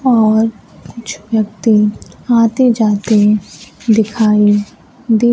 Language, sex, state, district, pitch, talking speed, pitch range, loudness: Hindi, female, Bihar, Kaimur, 220 Hz, 80 wpm, 210-230 Hz, -13 LUFS